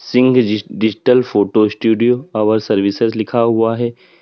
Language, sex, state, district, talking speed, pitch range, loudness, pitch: Hindi, male, Uttar Pradesh, Lalitpur, 140 wpm, 110-125 Hz, -15 LUFS, 115 Hz